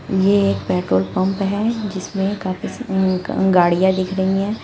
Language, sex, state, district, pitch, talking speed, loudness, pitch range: Hindi, female, Uttar Pradesh, Shamli, 190 Hz, 140 wpm, -19 LUFS, 185-200 Hz